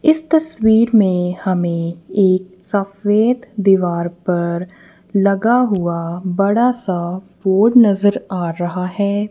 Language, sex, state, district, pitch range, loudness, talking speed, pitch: Hindi, female, Punjab, Kapurthala, 180-215 Hz, -16 LUFS, 110 wpm, 195 Hz